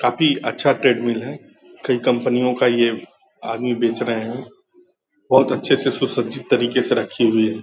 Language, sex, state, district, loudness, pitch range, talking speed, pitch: Hindi, male, Bihar, Purnia, -19 LUFS, 115-135 Hz, 190 wpm, 125 Hz